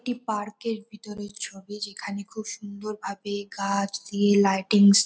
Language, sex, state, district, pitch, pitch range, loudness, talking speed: Bengali, female, West Bengal, North 24 Parganas, 205 Hz, 200-215 Hz, -27 LUFS, 155 wpm